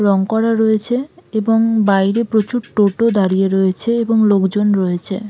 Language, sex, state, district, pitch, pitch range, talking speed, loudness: Bengali, female, West Bengal, Purulia, 215 Hz, 195-225 Hz, 145 wpm, -16 LUFS